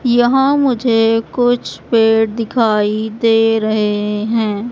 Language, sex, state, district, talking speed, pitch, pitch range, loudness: Hindi, female, Madhya Pradesh, Katni, 100 wpm, 225 Hz, 215-240 Hz, -14 LUFS